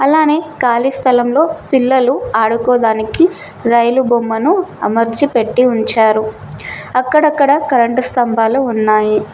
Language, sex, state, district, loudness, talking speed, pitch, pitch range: Telugu, female, Telangana, Mahabubabad, -13 LUFS, 90 wpm, 250 Hz, 230-280 Hz